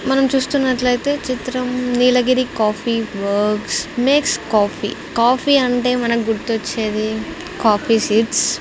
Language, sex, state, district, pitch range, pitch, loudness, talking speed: Telugu, female, Andhra Pradesh, Sri Satya Sai, 220-255 Hz, 245 Hz, -17 LUFS, 105 wpm